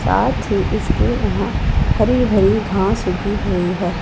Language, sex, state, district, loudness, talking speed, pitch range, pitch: Hindi, female, Punjab, Pathankot, -18 LUFS, 165 wpm, 180-205 Hz, 195 Hz